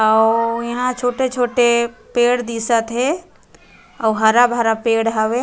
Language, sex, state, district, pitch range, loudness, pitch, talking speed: Chhattisgarhi, female, Chhattisgarh, Raigarh, 225-245 Hz, -17 LUFS, 235 Hz, 110 wpm